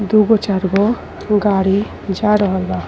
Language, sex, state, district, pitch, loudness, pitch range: Bhojpuri, female, Uttar Pradesh, Ghazipur, 200 Hz, -16 LUFS, 190-210 Hz